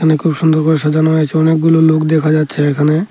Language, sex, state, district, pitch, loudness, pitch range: Bengali, male, Tripura, Unakoti, 160 Hz, -12 LUFS, 155-160 Hz